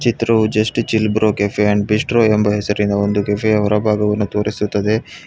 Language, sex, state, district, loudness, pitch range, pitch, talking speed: Kannada, male, Karnataka, Bangalore, -16 LUFS, 105-110 Hz, 105 Hz, 150 wpm